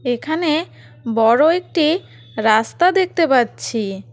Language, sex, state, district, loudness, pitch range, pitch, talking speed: Bengali, female, West Bengal, Cooch Behar, -17 LUFS, 220-325 Hz, 250 Hz, 85 wpm